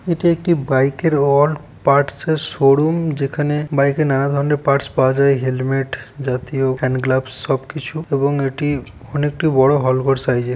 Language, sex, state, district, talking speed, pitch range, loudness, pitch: Bengali, male, West Bengal, Purulia, 180 wpm, 130-150 Hz, -17 LUFS, 140 Hz